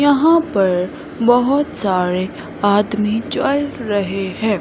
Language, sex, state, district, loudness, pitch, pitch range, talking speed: Hindi, female, Himachal Pradesh, Shimla, -17 LUFS, 215 Hz, 195-275 Hz, 105 wpm